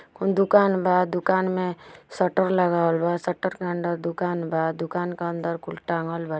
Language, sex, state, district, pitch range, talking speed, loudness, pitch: Bhojpuri, female, Uttar Pradesh, Ghazipur, 170-185 Hz, 180 wpm, -24 LUFS, 175 Hz